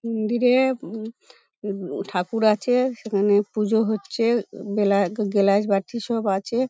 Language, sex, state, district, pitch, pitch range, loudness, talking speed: Bengali, female, West Bengal, Paschim Medinipur, 220 Hz, 200-235 Hz, -22 LUFS, 125 wpm